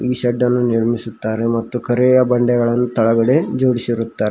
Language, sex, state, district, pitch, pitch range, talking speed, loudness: Kannada, male, Karnataka, Koppal, 120 Hz, 115-125 Hz, 110 wpm, -16 LUFS